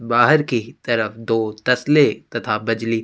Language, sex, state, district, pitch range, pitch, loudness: Hindi, male, Chhattisgarh, Sukma, 115-125 Hz, 115 Hz, -19 LUFS